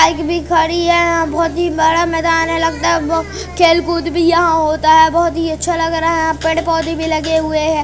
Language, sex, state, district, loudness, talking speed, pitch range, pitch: Hindi, female, Madhya Pradesh, Katni, -14 LUFS, 230 wpm, 320-335 Hz, 330 Hz